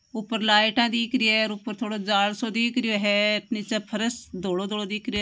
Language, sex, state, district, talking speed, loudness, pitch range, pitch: Marwari, female, Rajasthan, Nagaur, 195 wpm, -24 LUFS, 210-230 Hz, 220 Hz